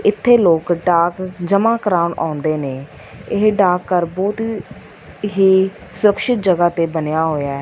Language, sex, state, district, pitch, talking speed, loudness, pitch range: Punjabi, female, Punjab, Fazilka, 180 Hz, 140 wpm, -16 LUFS, 160-205 Hz